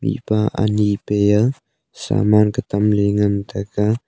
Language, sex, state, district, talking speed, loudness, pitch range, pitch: Wancho, male, Arunachal Pradesh, Longding, 120 wpm, -18 LUFS, 100-110 Hz, 105 Hz